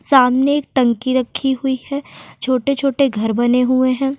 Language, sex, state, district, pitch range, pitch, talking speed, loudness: Hindi, female, Uttar Pradesh, Jyotiba Phule Nagar, 255-275 Hz, 260 Hz, 170 wpm, -17 LUFS